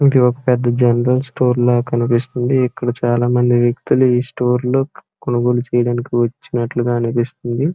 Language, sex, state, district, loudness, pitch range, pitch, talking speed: Telugu, male, Andhra Pradesh, Srikakulam, -16 LUFS, 120-125 Hz, 120 Hz, 140 wpm